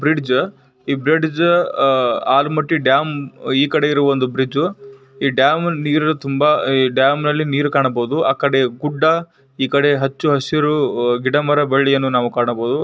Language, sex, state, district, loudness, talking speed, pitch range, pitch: Kannada, male, Karnataka, Bijapur, -17 LUFS, 140 wpm, 135-150 Hz, 140 Hz